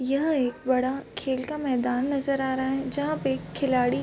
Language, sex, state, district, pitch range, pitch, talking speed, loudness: Hindi, female, Bihar, Vaishali, 255-275 Hz, 265 Hz, 225 wpm, -27 LUFS